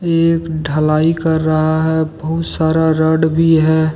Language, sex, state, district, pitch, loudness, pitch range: Hindi, male, Jharkhand, Deoghar, 160 Hz, -14 LUFS, 155-165 Hz